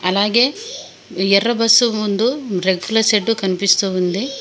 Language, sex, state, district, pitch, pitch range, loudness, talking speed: Telugu, female, Telangana, Mahabubabad, 210 Hz, 190-235 Hz, -16 LUFS, 110 wpm